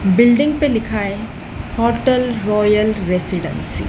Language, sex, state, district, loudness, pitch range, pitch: Hindi, female, Madhya Pradesh, Dhar, -17 LUFS, 200-240 Hz, 215 Hz